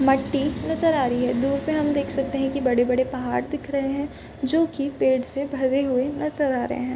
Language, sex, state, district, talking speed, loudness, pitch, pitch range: Hindi, female, Uttar Pradesh, Varanasi, 225 wpm, -23 LUFS, 275 Hz, 260-285 Hz